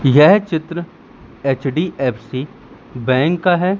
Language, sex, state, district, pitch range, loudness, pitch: Hindi, male, Madhya Pradesh, Katni, 130-175 Hz, -17 LUFS, 150 Hz